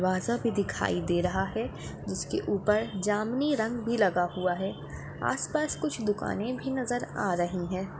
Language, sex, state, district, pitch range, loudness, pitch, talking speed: Hindi, female, Maharashtra, Dhule, 185-235 Hz, -30 LUFS, 210 Hz, 165 wpm